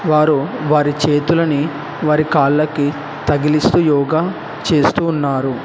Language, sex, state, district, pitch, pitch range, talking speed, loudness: Telugu, male, Telangana, Hyderabad, 150 Hz, 145-155 Hz, 95 wpm, -16 LUFS